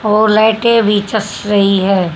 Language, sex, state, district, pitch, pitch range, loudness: Hindi, female, Haryana, Charkhi Dadri, 210 Hz, 200-220 Hz, -12 LUFS